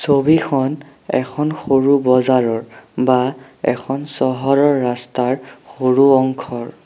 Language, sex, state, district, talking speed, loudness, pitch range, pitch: Assamese, male, Assam, Sonitpur, 90 wpm, -17 LUFS, 125-140 Hz, 130 Hz